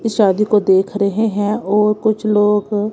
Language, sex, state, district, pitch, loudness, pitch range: Hindi, female, Punjab, Kapurthala, 210 Hz, -15 LUFS, 205-215 Hz